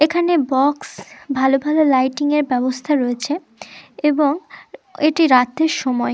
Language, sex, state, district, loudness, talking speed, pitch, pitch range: Bengali, female, West Bengal, Dakshin Dinajpur, -18 LUFS, 115 wpm, 290 Hz, 260-310 Hz